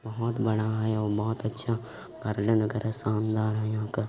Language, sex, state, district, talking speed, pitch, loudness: Hindi, male, Chhattisgarh, Korba, 205 wpm, 110 Hz, -29 LUFS